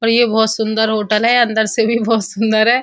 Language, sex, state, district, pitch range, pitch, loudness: Hindi, female, Uttar Pradesh, Muzaffarnagar, 220-230 Hz, 220 Hz, -15 LUFS